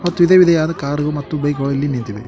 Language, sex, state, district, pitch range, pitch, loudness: Kannada, male, Karnataka, Koppal, 140-170 Hz, 145 Hz, -16 LUFS